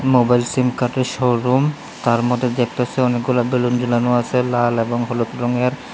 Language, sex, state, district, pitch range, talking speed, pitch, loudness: Bengali, male, Tripura, West Tripura, 120-125 Hz, 140 wpm, 125 Hz, -18 LUFS